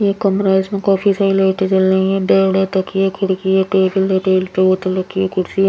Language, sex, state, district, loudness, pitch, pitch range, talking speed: Hindi, female, Bihar, Patna, -15 LUFS, 190 Hz, 190-195 Hz, 255 wpm